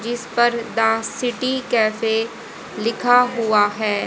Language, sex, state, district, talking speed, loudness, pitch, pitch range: Hindi, female, Haryana, Jhajjar, 115 wpm, -19 LUFS, 230 Hz, 220-245 Hz